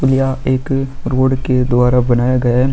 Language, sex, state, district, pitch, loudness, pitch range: Hindi, male, Chhattisgarh, Sukma, 130 Hz, -15 LUFS, 125-135 Hz